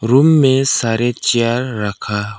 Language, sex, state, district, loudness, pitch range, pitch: Hindi, male, Arunachal Pradesh, Lower Dibang Valley, -15 LUFS, 110-130 Hz, 120 Hz